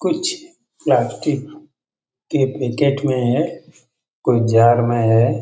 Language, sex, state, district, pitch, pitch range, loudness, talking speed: Hindi, male, Bihar, Jamui, 140 Hz, 120-160 Hz, -18 LUFS, 110 wpm